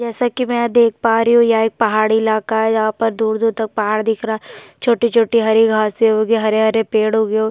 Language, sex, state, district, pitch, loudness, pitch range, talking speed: Hindi, female, Bihar, Kishanganj, 225 Hz, -16 LUFS, 220-230 Hz, 230 wpm